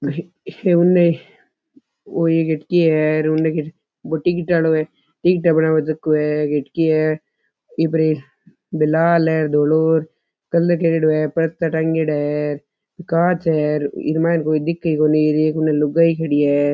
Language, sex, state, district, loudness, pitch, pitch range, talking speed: Rajasthani, male, Rajasthan, Churu, -18 LUFS, 160 Hz, 155-170 Hz, 145 wpm